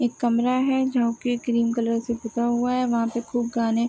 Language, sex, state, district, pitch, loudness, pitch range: Hindi, female, Uttar Pradesh, Varanasi, 235 Hz, -24 LUFS, 230-245 Hz